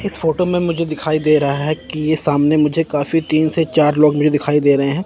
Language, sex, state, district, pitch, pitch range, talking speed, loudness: Hindi, male, Chandigarh, Chandigarh, 155 Hz, 150-160 Hz, 250 wpm, -16 LUFS